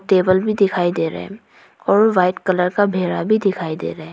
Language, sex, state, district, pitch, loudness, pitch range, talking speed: Hindi, female, Arunachal Pradesh, Papum Pare, 185 Hz, -18 LUFS, 180-200 Hz, 235 wpm